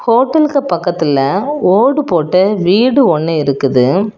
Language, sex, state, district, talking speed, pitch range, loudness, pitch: Tamil, female, Tamil Nadu, Kanyakumari, 100 wpm, 155-250 Hz, -12 LUFS, 190 Hz